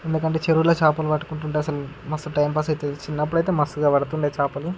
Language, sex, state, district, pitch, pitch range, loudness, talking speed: Telugu, male, Andhra Pradesh, Guntur, 155 Hz, 145-160 Hz, -22 LUFS, 175 wpm